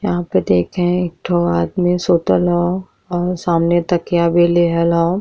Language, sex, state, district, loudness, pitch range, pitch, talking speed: Bhojpuri, female, Uttar Pradesh, Deoria, -16 LUFS, 170-180 Hz, 175 Hz, 160 wpm